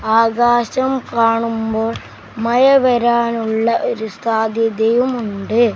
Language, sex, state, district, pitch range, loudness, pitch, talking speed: Malayalam, male, Kerala, Kasaragod, 225-240 Hz, -16 LUFS, 230 Hz, 65 wpm